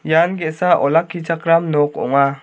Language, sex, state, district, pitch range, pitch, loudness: Garo, male, Meghalaya, South Garo Hills, 145-170 Hz, 165 Hz, -17 LUFS